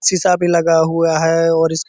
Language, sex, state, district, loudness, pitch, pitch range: Hindi, male, Bihar, Purnia, -14 LUFS, 165 Hz, 165-170 Hz